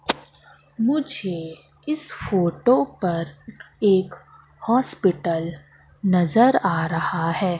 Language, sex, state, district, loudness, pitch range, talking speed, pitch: Hindi, female, Madhya Pradesh, Katni, -22 LUFS, 165-235 Hz, 80 wpm, 185 Hz